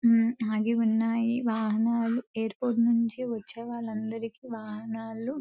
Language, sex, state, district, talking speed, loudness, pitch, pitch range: Telugu, female, Telangana, Nalgonda, 110 wpm, -29 LUFS, 230 Hz, 225-235 Hz